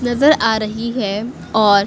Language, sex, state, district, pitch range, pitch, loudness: Hindi, female, Uttar Pradesh, Lucknow, 210-245 Hz, 225 Hz, -17 LUFS